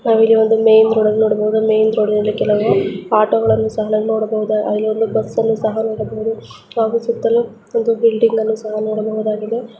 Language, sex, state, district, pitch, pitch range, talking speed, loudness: Kannada, female, Karnataka, Bijapur, 220 Hz, 215-225 Hz, 170 wpm, -16 LUFS